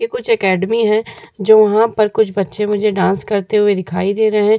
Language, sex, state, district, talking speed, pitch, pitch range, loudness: Hindi, female, Bihar, Vaishali, 220 wpm, 210 Hz, 200-220 Hz, -15 LUFS